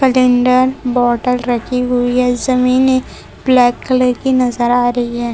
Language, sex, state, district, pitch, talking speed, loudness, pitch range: Hindi, female, Chhattisgarh, Raipur, 250 Hz, 145 wpm, -14 LUFS, 245-255 Hz